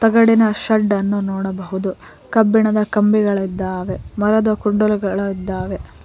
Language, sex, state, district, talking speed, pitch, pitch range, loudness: Kannada, female, Karnataka, Koppal, 70 wpm, 205 Hz, 190-215 Hz, -17 LUFS